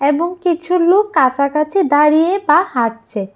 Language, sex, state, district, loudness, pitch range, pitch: Bengali, female, Tripura, West Tripura, -14 LUFS, 275-355 Hz, 305 Hz